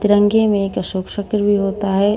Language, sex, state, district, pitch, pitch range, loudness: Hindi, female, Uttar Pradesh, Budaun, 205 Hz, 195-210 Hz, -17 LUFS